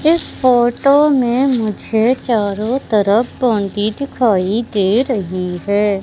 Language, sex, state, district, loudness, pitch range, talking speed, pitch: Hindi, female, Madhya Pradesh, Katni, -15 LUFS, 205-255 Hz, 110 wpm, 225 Hz